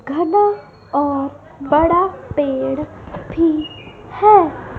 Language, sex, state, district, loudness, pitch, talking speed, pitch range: Hindi, female, Madhya Pradesh, Dhar, -16 LUFS, 310 Hz, 75 wpm, 280-355 Hz